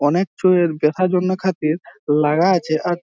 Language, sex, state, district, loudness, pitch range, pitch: Bengali, male, West Bengal, Jhargram, -18 LUFS, 155-185 Hz, 175 Hz